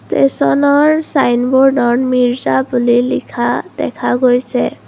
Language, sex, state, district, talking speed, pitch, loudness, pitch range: Assamese, female, Assam, Kamrup Metropolitan, 85 wpm, 250 Hz, -13 LUFS, 240-265 Hz